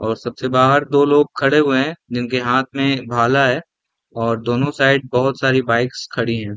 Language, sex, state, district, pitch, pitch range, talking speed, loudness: Hindi, male, Chhattisgarh, Raigarh, 130 Hz, 120-140 Hz, 200 wpm, -17 LUFS